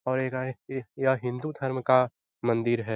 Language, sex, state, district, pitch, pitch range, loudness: Hindi, male, Bihar, Jahanabad, 130 Hz, 120-130 Hz, -28 LUFS